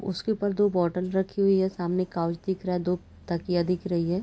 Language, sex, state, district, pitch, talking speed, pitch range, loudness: Hindi, female, Bihar, Sitamarhi, 180 Hz, 240 wpm, 175-190 Hz, -27 LUFS